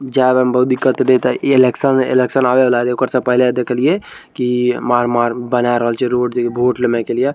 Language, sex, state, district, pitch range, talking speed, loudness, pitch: Maithili, male, Bihar, Araria, 120-130 Hz, 230 wpm, -15 LUFS, 125 Hz